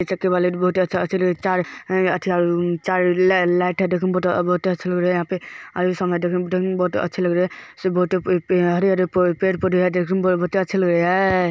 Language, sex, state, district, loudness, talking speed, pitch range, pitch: Hindi, male, Bihar, Araria, -20 LUFS, 55 wpm, 180-185 Hz, 180 Hz